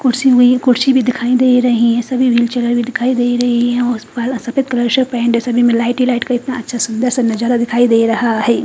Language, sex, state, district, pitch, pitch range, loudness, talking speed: Hindi, female, Haryana, Charkhi Dadri, 245 Hz, 235-250 Hz, -14 LUFS, 150 wpm